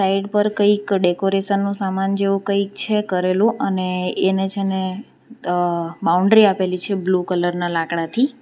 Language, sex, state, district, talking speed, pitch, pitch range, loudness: Gujarati, female, Gujarat, Valsad, 165 wpm, 195 Hz, 180-200 Hz, -19 LUFS